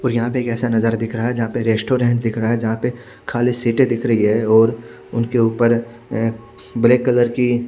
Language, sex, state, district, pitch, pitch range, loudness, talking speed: Hindi, male, Chhattisgarh, Raipur, 115 Hz, 115-120 Hz, -18 LUFS, 225 wpm